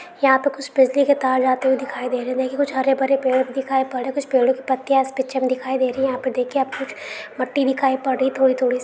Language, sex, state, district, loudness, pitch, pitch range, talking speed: Hindi, male, Uttar Pradesh, Ghazipur, -20 LUFS, 265 Hz, 260-270 Hz, 300 wpm